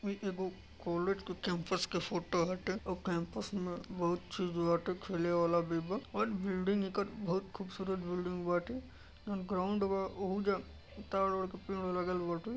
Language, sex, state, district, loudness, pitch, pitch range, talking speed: Bhojpuri, male, Uttar Pradesh, Deoria, -37 LUFS, 185 Hz, 175-195 Hz, 175 wpm